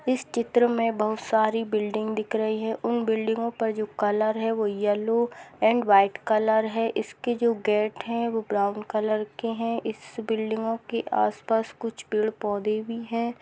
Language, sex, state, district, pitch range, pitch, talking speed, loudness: Hindi, female, Bihar, East Champaran, 215-230 Hz, 220 Hz, 170 wpm, -26 LUFS